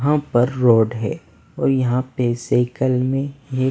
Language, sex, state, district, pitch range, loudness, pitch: Hindi, male, Delhi, New Delhi, 120-135 Hz, -19 LUFS, 130 Hz